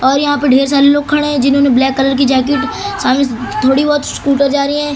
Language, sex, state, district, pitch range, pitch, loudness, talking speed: Hindi, male, Maharashtra, Mumbai Suburban, 270-290 Hz, 280 Hz, -12 LUFS, 240 wpm